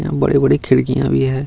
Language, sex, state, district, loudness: Hindi, male, Bihar, Gaya, -15 LUFS